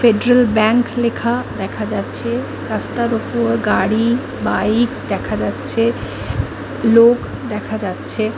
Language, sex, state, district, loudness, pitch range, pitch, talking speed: Bengali, female, West Bengal, Kolkata, -17 LUFS, 225-240 Hz, 235 Hz, 120 wpm